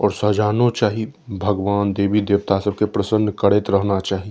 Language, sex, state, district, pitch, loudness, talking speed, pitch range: Maithili, male, Bihar, Saharsa, 105 Hz, -19 LUFS, 165 wpm, 100-105 Hz